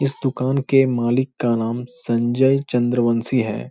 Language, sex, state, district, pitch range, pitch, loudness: Hindi, male, Bihar, Jahanabad, 120-135 Hz, 125 Hz, -20 LUFS